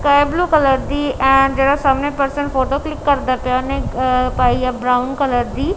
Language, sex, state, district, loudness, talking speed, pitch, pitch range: Punjabi, female, Punjab, Kapurthala, -16 LUFS, 210 wpm, 270 Hz, 255-285 Hz